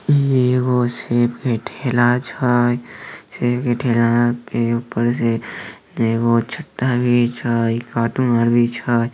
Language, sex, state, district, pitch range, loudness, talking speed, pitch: Maithili, male, Bihar, Samastipur, 115-125 Hz, -18 LUFS, 130 wpm, 120 Hz